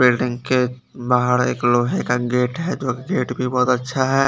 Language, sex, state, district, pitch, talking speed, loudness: Hindi, male, Chandigarh, Chandigarh, 125 Hz, 195 wpm, -20 LUFS